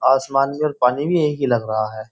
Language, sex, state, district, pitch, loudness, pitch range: Hindi, male, Uttar Pradesh, Jyotiba Phule Nagar, 135 Hz, -19 LUFS, 115-145 Hz